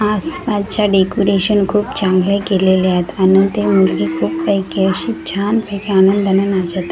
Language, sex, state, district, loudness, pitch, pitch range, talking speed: Marathi, female, Maharashtra, Gondia, -15 LUFS, 195 Hz, 185-205 Hz, 175 wpm